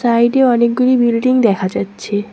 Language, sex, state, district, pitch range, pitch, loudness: Bengali, female, West Bengal, Cooch Behar, 210-250 Hz, 235 Hz, -14 LUFS